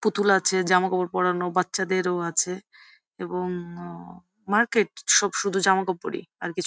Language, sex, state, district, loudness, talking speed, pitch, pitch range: Bengali, female, West Bengal, Jhargram, -24 LUFS, 145 wpm, 185 Hz, 180-200 Hz